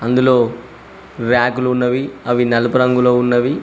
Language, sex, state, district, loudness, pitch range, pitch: Telugu, male, Telangana, Mahabubabad, -15 LUFS, 120-125 Hz, 125 Hz